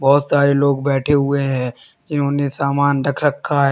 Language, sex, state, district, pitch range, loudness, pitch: Hindi, male, Uttar Pradesh, Lalitpur, 140-145 Hz, -17 LUFS, 140 Hz